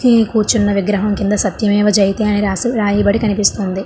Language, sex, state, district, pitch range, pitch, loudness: Telugu, female, Andhra Pradesh, Srikakulam, 205-215 Hz, 205 Hz, -14 LUFS